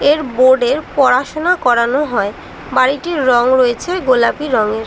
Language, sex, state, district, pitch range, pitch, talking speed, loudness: Bengali, female, West Bengal, North 24 Parganas, 245-295 Hz, 260 Hz, 135 wpm, -14 LUFS